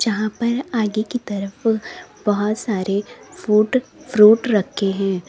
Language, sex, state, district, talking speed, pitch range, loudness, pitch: Hindi, female, Uttar Pradesh, Lalitpur, 125 wpm, 205-230 Hz, -19 LUFS, 215 Hz